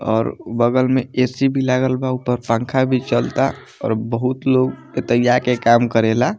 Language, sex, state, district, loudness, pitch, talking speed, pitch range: Bhojpuri, male, Bihar, Muzaffarpur, -18 LUFS, 125 Hz, 180 wpm, 120-130 Hz